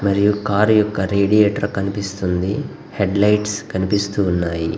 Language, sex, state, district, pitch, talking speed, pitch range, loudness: Telugu, male, Andhra Pradesh, Guntur, 100 Hz, 125 wpm, 95-105 Hz, -18 LUFS